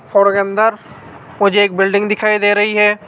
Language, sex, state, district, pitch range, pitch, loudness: Hindi, male, Rajasthan, Jaipur, 200-210 Hz, 205 Hz, -13 LUFS